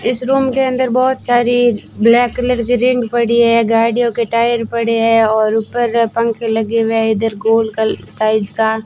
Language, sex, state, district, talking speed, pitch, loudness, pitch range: Hindi, female, Rajasthan, Bikaner, 190 wpm, 230 Hz, -14 LUFS, 225-245 Hz